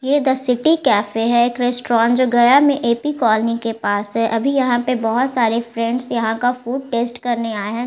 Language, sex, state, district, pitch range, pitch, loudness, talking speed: Hindi, female, Bihar, Gaya, 230-255 Hz, 240 Hz, -17 LUFS, 215 wpm